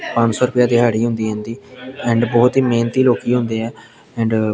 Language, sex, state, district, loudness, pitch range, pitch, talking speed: Punjabi, male, Punjab, Pathankot, -17 LUFS, 115-125 Hz, 120 Hz, 210 wpm